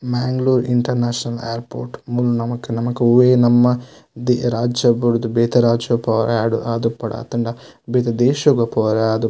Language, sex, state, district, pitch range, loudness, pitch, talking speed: Tulu, male, Karnataka, Dakshina Kannada, 115-125 Hz, -18 LUFS, 120 Hz, 150 wpm